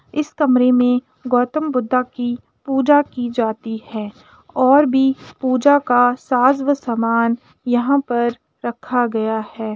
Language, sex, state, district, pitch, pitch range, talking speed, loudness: Hindi, female, Uttar Pradesh, Jalaun, 250 Hz, 235-265 Hz, 130 wpm, -18 LUFS